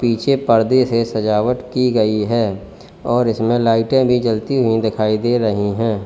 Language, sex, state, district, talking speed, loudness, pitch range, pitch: Hindi, male, Uttar Pradesh, Lalitpur, 170 wpm, -16 LUFS, 110-125 Hz, 115 Hz